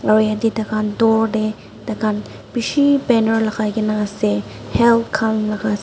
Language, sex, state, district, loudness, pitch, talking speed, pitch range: Nagamese, female, Nagaland, Dimapur, -18 LUFS, 215 Hz, 165 wpm, 215-225 Hz